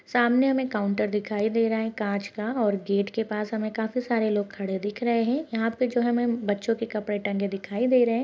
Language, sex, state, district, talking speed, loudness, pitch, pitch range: Hindi, female, Rajasthan, Churu, 240 wpm, -26 LUFS, 220 Hz, 205-235 Hz